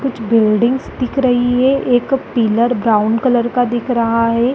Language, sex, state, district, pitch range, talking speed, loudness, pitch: Hindi, female, Chhattisgarh, Rajnandgaon, 230-255 Hz, 170 wpm, -15 LUFS, 245 Hz